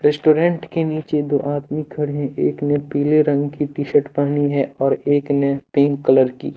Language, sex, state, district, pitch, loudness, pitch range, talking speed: Hindi, male, Jharkhand, Deoghar, 145 Hz, -19 LUFS, 140-150 Hz, 190 wpm